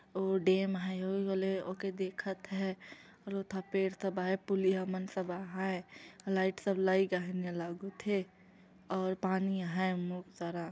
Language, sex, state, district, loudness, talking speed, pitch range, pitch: Chhattisgarhi, female, Chhattisgarh, Jashpur, -35 LUFS, 150 wpm, 185-195 Hz, 190 Hz